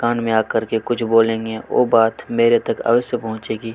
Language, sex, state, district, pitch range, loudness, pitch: Hindi, male, Chhattisgarh, Kabirdham, 110-120 Hz, -18 LUFS, 115 Hz